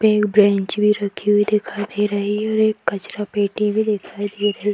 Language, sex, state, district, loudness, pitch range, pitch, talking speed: Hindi, female, Bihar, Jahanabad, -19 LUFS, 205-210 Hz, 210 Hz, 190 wpm